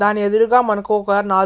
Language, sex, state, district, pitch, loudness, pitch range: Telugu, male, Andhra Pradesh, Chittoor, 205 Hz, -16 LUFS, 200-215 Hz